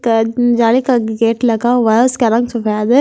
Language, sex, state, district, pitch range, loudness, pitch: Hindi, female, Delhi, New Delhi, 225-245 Hz, -13 LUFS, 230 Hz